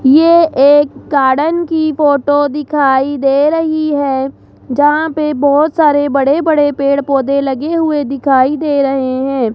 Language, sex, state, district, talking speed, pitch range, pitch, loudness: Hindi, male, Rajasthan, Jaipur, 145 wpm, 275-305 Hz, 285 Hz, -12 LUFS